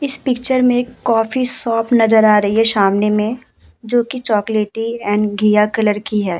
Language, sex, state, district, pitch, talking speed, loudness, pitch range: Hindi, female, Uttar Pradesh, Muzaffarnagar, 220 Hz, 190 wpm, -15 LUFS, 210-245 Hz